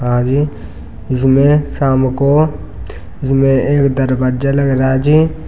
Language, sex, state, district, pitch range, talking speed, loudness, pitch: Hindi, male, Uttar Pradesh, Saharanpur, 125-140 Hz, 110 wpm, -13 LUFS, 135 Hz